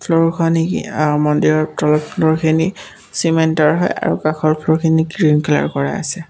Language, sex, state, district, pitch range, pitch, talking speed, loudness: Assamese, male, Assam, Kamrup Metropolitan, 150-165 Hz, 160 Hz, 105 wpm, -16 LUFS